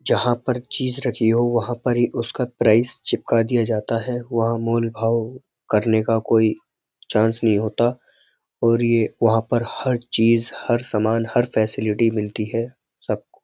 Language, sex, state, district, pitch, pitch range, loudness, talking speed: Hindi, male, Uttar Pradesh, Jyotiba Phule Nagar, 115 Hz, 110-120 Hz, -21 LUFS, 170 wpm